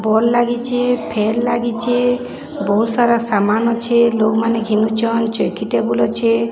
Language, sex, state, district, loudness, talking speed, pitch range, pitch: Odia, male, Odisha, Sambalpur, -16 LUFS, 140 wpm, 220-240 Hz, 230 Hz